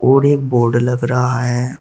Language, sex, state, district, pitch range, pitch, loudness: Hindi, male, Uttar Pradesh, Shamli, 120-130 Hz, 125 Hz, -15 LUFS